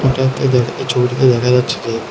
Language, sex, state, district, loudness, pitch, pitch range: Bengali, male, Tripura, West Tripura, -15 LUFS, 125 Hz, 120-130 Hz